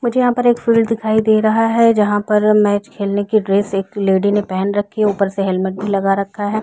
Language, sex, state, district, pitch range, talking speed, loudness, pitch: Hindi, female, Chhattisgarh, Rajnandgaon, 200-220 Hz, 255 wpm, -16 LUFS, 205 Hz